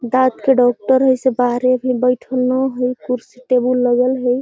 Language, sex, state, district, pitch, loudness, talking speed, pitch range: Magahi, female, Bihar, Gaya, 255 Hz, -16 LUFS, 190 wpm, 250-260 Hz